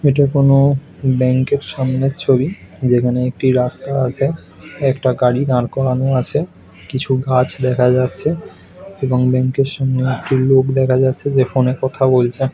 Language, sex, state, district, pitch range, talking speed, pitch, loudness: Bengali, male, West Bengal, North 24 Parganas, 130-135 Hz, 145 wpm, 130 Hz, -16 LUFS